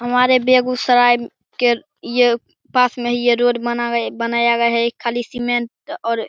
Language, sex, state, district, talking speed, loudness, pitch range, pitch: Hindi, male, Bihar, Begusarai, 170 wpm, -17 LUFS, 235-245 Hz, 240 Hz